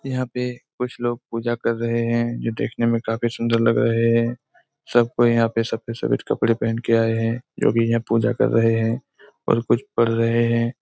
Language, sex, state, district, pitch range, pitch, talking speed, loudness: Hindi, male, Bihar, Araria, 115-120 Hz, 115 Hz, 225 wpm, -21 LUFS